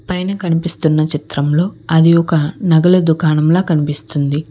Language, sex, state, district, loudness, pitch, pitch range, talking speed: Telugu, female, Telangana, Hyderabad, -14 LUFS, 160 Hz, 155-170 Hz, 105 wpm